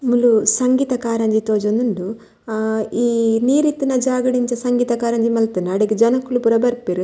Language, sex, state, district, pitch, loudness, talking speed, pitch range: Tulu, female, Karnataka, Dakshina Kannada, 235 Hz, -18 LUFS, 130 wpm, 220-245 Hz